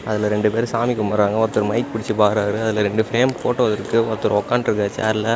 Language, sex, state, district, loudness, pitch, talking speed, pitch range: Tamil, male, Tamil Nadu, Namakkal, -19 LUFS, 110 Hz, 200 wpm, 105-115 Hz